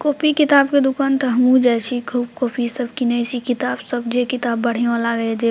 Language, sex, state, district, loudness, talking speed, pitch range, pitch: Maithili, female, Bihar, Purnia, -18 LUFS, 230 wpm, 235-265 Hz, 245 Hz